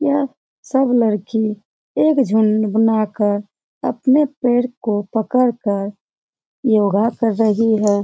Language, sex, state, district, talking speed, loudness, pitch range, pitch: Hindi, female, Bihar, Lakhisarai, 125 wpm, -18 LUFS, 210-245 Hz, 220 Hz